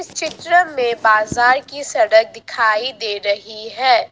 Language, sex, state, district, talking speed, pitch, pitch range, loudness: Hindi, female, Assam, Sonitpur, 130 wpm, 245 Hz, 220-320 Hz, -16 LUFS